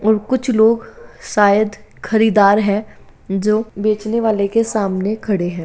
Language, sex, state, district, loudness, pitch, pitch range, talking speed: Hindi, male, Bihar, Saharsa, -16 LUFS, 215 Hz, 200-225 Hz, 140 wpm